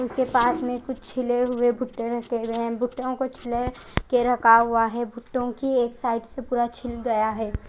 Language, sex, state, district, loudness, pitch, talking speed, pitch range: Hindi, female, Odisha, Khordha, -24 LUFS, 245 Hz, 205 wpm, 235-250 Hz